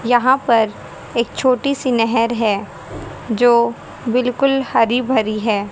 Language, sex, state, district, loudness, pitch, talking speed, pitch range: Hindi, female, Haryana, Jhajjar, -17 LUFS, 235 Hz, 125 wpm, 220-250 Hz